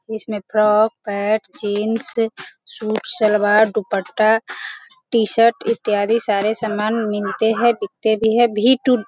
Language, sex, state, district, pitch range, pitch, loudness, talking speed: Hindi, female, Bihar, Sitamarhi, 210-230 Hz, 220 Hz, -18 LUFS, 130 wpm